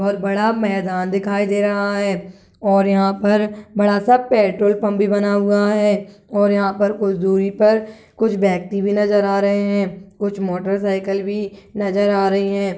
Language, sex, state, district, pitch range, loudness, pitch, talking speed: Hindi, male, Chhattisgarh, Kabirdham, 195-205 Hz, -18 LUFS, 200 Hz, 185 wpm